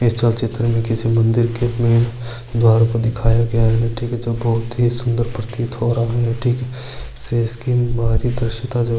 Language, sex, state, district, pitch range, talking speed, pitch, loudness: Marwari, male, Rajasthan, Churu, 115-120 Hz, 135 wpm, 115 Hz, -18 LUFS